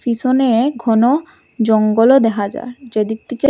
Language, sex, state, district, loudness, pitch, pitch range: Bengali, female, Assam, Hailakandi, -15 LUFS, 240 Hz, 225-265 Hz